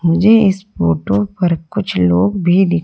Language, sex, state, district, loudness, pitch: Hindi, female, Madhya Pradesh, Umaria, -14 LUFS, 175 Hz